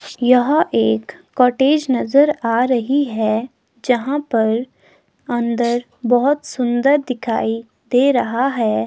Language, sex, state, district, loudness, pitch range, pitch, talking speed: Hindi, female, Himachal Pradesh, Shimla, -17 LUFS, 230-265 Hz, 245 Hz, 110 wpm